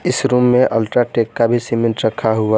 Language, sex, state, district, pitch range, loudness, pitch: Hindi, male, Jharkhand, Garhwa, 115-125 Hz, -16 LUFS, 115 Hz